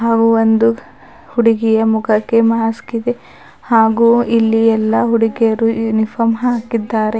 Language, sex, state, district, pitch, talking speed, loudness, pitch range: Kannada, female, Karnataka, Bidar, 225 Hz, 100 wpm, -14 LUFS, 225-230 Hz